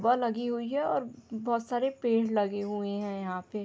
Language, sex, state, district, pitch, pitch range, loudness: Hindi, female, Jharkhand, Sahebganj, 225 Hz, 205-240 Hz, -31 LUFS